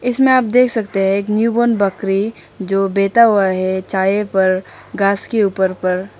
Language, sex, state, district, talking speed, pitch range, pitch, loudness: Hindi, female, Arunachal Pradesh, Lower Dibang Valley, 185 wpm, 190-225 Hz, 200 Hz, -16 LUFS